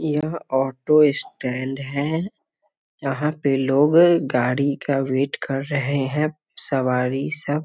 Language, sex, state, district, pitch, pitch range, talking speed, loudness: Hindi, male, Bihar, Muzaffarpur, 140 Hz, 135-155 Hz, 125 wpm, -21 LUFS